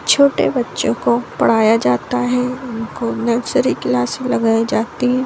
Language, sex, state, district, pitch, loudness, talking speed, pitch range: Hindi, female, Bihar, Saran, 235 Hz, -17 LUFS, 150 wpm, 225-250 Hz